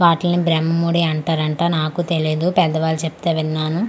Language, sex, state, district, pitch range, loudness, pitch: Telugu, female, Andhra Pradesh, Manyam, 160-170 Hz, -18 LUFS, 165 Hz